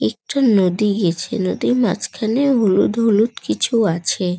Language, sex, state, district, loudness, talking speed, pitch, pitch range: Bengali, female, West Bengal, North 24 Parganas, -17 LUFS, 125 wpm, 210 Hz, 180-235 Hz